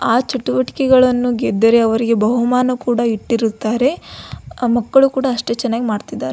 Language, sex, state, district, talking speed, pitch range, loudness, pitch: Kannada, female, Karnataka, Belgaum, 115 wpm, 230-255 Hz, -16 LUFS, 240 Hz